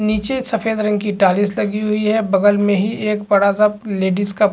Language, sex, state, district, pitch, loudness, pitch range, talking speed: Hindi, male, Chhattisgarh, Rajnandgaon, 210 Hz, -17 LUFS, 200-215 Hz, 225 wpm